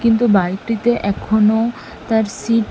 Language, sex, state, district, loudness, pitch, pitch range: Bengali, female, West Bengal, Malda, -17 LUFS, 225 Hz, 210-230 Hz